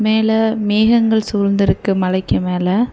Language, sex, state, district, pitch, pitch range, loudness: Tamil, female, Tamil Nadu, Kanyakumari, 215 Hz, 195-220 Hz, -16 LUFS